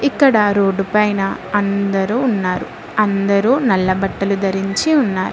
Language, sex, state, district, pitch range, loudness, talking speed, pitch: Telugu, female, Telangana, Mahabubabad, 195-215 Hz, -16 LUFS, 100 wpm, 200 Hz